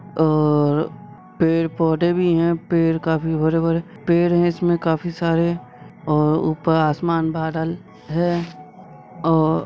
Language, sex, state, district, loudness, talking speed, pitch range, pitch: Hindi, male, Jharkhand, Sahebganj, -20 LUFS, 110 wpm, 160-170 Hz, 165 Hz